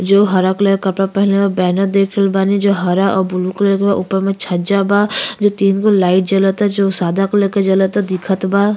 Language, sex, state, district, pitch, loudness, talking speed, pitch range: Bhojpuri, female, Uttar Pradesh, Ghazipur, 195 Hz, -14 LUFS, 235 wpm, 190-200 Hz